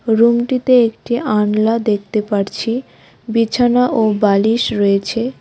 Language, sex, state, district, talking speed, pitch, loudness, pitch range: Bengali, female, West Bengal, Cooch Behar, 100 wpm, 225 Hz, -15 LUFS, 210-240 Hz